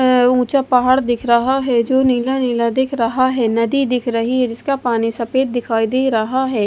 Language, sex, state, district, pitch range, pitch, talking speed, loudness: Hindi, female, Odisha, Malkangiri, 235-260 Hz, 250 Hz, 205 wpm, -16 LUFS